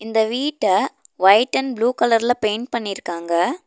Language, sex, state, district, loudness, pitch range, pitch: Tamil, female, Tamil Nadu, Nilgiris, -19 LUFS, 200-245 Hz, 225 Hz